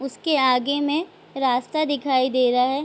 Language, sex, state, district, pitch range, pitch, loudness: Hindi, female, Bihar, Vaishali, 255-295 Hz, 270 Hz, -21 LUFS